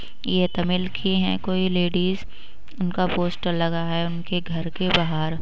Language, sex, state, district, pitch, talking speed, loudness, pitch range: Hindi, female, Uttar Pradesh, Budaun, 175 Hz, 155 wpm, -24 LUFS, 170-185 Hz